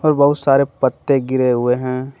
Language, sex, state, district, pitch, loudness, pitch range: Hindi, male, Jharkhand, Deoghar, 135 Hz, -16 LUFS, 130-140 Hz